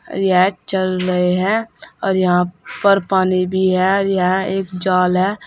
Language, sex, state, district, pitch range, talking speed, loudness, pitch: Hindi, female, Uttar Pradesh, Saharanpur, 180-195 Hz, 145 wpm, -17 LUFS, 185 Hz